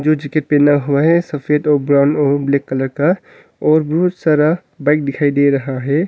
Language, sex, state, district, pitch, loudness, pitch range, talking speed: Hindi, male, Arunachal Pradesh, Longding, 145 Hz, -15 LUFS, 140-155 Hz, 185 wpm